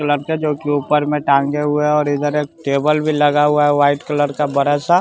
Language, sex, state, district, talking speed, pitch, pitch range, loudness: Hindi, male, Bihar, West Champaran, 265 wpm, 150 Hz, 145-150 Hz, -16 LUFS